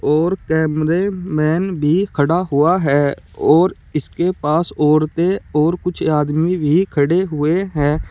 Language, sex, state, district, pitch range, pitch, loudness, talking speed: Hindi, male, Uttar Pradesh, Saharanpur, 150-180 Hz, 160 Hz, -17 LUFS, 135 wpm